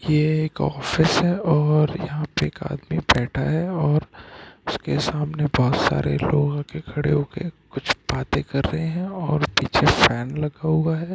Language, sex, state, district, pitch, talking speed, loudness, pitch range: Hindi, male, Bihar, Gopalganj, 150 Hz, 170 wpm, -22 LUFS, 145-160 Hz